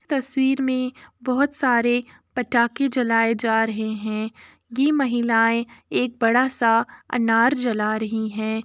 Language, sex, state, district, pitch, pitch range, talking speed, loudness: Hindi, female, Uttar Pradesh, Jalaun, 240 Hz, 225-260 Hz, 125 wpm, -21 LUFS